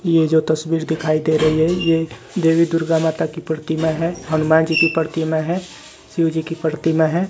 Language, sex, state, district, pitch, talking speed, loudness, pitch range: Hindi, male, Bihar, West Champaran, 160 Hz, 195 wpm, -18 LUFS, 160-165 Hz